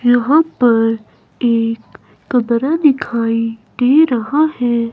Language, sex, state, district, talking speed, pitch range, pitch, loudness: Hindi, female, Himachal Pradesh, Shimla, 95 wpm, 230-285 Hz, 245 Hz, -15 LUFS